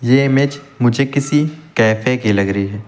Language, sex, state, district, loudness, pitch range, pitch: Hindi, male, Uttar Pradesh, Lucknow, -16 LUFS, 110-140 Hz, 130 Hz